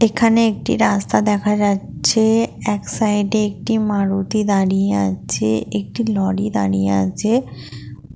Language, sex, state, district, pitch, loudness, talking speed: Bengali, female, West Bengal, Purulia, 205 Hz, -18 LUFS, 110 wpm